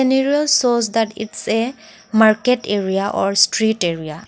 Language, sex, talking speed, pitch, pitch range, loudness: English, female, 140 wpm, 220 Hz, 200-245 Hz, -17 LUFS